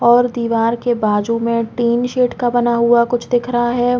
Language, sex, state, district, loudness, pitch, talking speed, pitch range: Hindi, female, Chhattisgarh, Raigarh, -16 LUFS, 240 Hz, 225 wpm, 235-245 Hz